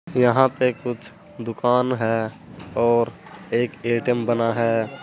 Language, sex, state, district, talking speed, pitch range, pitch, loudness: Hindi, male, Uttar Pradesh, Saharanpur, 120 wpm, 115-125 Hz, 120 Hz, -22 LUFS